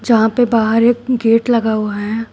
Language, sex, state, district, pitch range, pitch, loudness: Hindi, female, Uttar Pradesh, Shamli, 220-240 Hz, 225 Hz, -14 LUFS